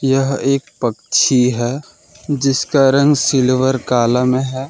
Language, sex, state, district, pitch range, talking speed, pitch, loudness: Hindi, male, Jharkhand, Deoghar, 125-140 Hz, 125 wpm, 135 Hz, -15 LUFS